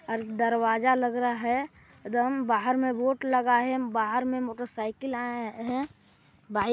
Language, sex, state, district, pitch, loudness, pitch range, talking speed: Hindi, male, Chhattisgarh, Balrampur, 245 Hz, -28 LUFS, 230-255 Hz, 170 wpm